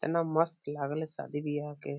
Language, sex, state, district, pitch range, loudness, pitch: Bhojpuri, male, Bihar, Saran, 145-165 Hz, -33 LUFS, 150 Hz